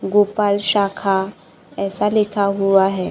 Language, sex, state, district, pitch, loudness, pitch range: Hindi, female, Maharashtra, Gondia, 200 Hz, -18 LUFS, 195-205 Hz